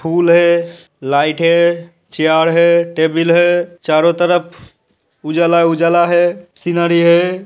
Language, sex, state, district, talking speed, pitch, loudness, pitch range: Hindi, male, Uttar Pradesh, Hamirpur, 130 wpm, 170 Hz, -13 LUFS, 165-175 Hz